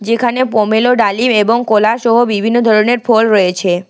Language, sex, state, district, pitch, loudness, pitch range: Bengali, female, West Bengal, Alipurduar, 225 Hz, -12 LUFS, 210-240 Hz